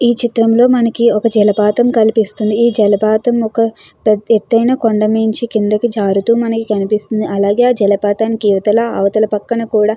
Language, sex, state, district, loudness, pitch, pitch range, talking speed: Telugu, female, Andhra Pradesh, Chittoor, -13 LUFS, 220 Hz, 210-230 Hz, 140 wpm